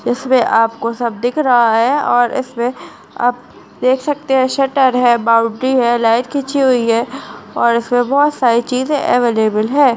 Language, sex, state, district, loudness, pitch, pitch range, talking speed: Hindi, female, Bihar, East Champaran, -14 LUFS, 245 Hz, 235-265 Hz, 160 wpm